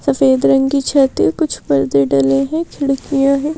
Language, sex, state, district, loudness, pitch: Hindi, female, Madhya Pradesh, Bhopal, -15 LUFS, 275 Hz